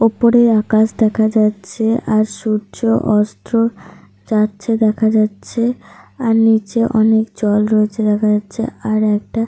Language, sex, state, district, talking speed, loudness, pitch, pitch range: Bengali, female, Jharkhand, Sahebganj, 120 wpm, -15 LUFS, 220 Hz, 215-225 Hz